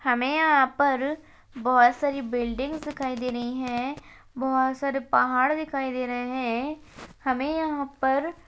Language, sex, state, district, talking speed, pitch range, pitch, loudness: Hindi, female, Uttarakhand, Uttarkashi, 150 wpm, 250-285 Hz, 265 Hz, -25 LUFS